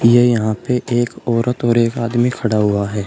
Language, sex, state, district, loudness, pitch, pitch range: Hindi, male, Uttar Pradesh, Shamli, -16 LUFS, 120 Hz, 110-120 Hz